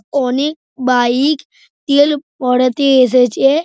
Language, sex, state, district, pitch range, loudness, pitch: Bengali, male, West Bengal, Dakshin Dinajpur, 250-290 Hz, -14 LUFS, 270 Hz